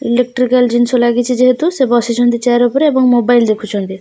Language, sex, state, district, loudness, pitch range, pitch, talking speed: Odia, female, Odisha, Khordha, -12 LUFS, 240-250 Hz, 245 Hz, 165 wpm